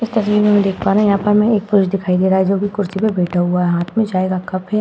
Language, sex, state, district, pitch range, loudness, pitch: Hindi, female, Uttar Pradesh, Hamirpur, 185-210 Hz, -16 LUFS, 195 Hz